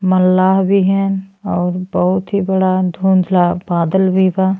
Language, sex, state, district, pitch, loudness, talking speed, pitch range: Bhojpuri, female, Uttar Pradesh, Ghazipur, 185 Hz, -15 LUFS, 145 wpm, 185-190 Hz